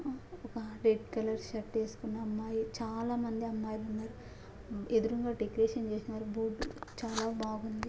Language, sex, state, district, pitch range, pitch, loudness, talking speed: Telugu, female, Andhra Pradesh, Anantapur, 220-230 Hz, 225 Hz, -36 LUFS, 130 wpm